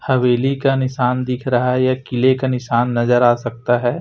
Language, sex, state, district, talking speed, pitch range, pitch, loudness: Hindi, male, Chhattisgarh, Raipur, 210 wpm, 120-130 Hz, 125 Hz, -17 LUFS